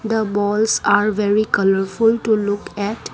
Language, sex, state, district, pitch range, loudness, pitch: English, female, Assam, Kamrup Metropolitan, 205-220 Hz, -18 LUFS, 210 Hz